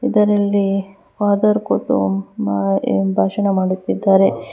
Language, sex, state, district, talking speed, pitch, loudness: Kannada, female, Karnataka, Bangalore, 80 wpm, 195 Hz, -17 LUFS